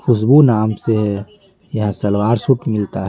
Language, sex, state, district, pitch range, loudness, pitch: Hindi, male, Bihar, Patna, 105-135 Hz, -16 LUFS, 110 Hz